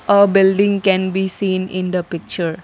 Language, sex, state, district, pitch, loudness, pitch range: English, female, Assam, Kamrup Metropolitan, 190 Hz, -16 LUFS, 185-195 Hz